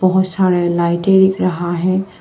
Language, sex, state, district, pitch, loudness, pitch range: Hindi, female, Arunachal Pradesh, Papum Pare, 185 Hz, -15 LUFS, 175-190 Hz